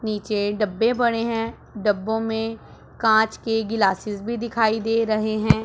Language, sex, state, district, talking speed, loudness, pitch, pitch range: Hindi, female, Punjab, Pathankot, 150 wpm, -22 LUFS, 220 Hz, 215-225 Hz